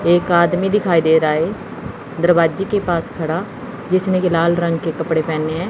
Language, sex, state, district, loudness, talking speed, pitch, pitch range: Hindi, female, Chandigarh, Chandigarh, -17 LUFS, 190 wpm, 170 Hz, 160-180 Hz